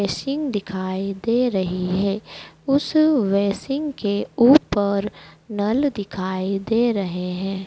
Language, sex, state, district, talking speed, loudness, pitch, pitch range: Hindi, female, Madhya Pradesh, Dhar, 110 wpm, -21 LUFS, 200 Hz, 190-245 Hz